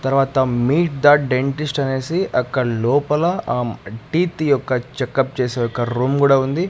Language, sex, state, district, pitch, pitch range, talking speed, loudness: Telugu, male, Andhra Pradesh, Annamaya, 135 Hz, 125-145 Hz, 150 wpm, -18 LUFS